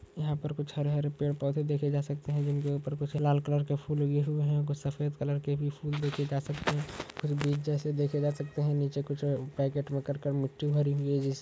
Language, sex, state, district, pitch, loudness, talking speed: Hindi, male, Uttar Pradesh, Budaun, 145 Hz, -32 LUFS, 245 wpm